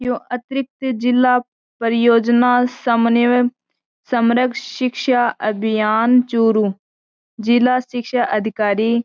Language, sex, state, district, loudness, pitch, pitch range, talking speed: Marwari, female, Rajasthan, Churu, -17 LUFS, 240 Hz, 230-250 Hz, 85 wpm